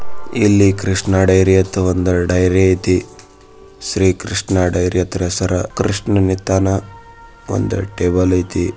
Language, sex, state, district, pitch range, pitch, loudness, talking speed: Kannada, male, Karnataka, Bijapur, 90-100 Hz, 95 Hz, -16 LUFS, 125 wpm